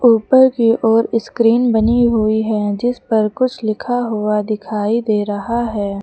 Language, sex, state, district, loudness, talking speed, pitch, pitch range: Hindi, male, Uttar Pradesh, Lucknow, -16 LUFS, 160 wpm, 225 Hz, 215-240 Hz